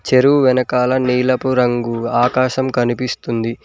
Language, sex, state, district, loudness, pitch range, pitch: Telugu, male, Telangana, Mahabubabad, -16 LUFS, 120-130 Hz, 125 Hz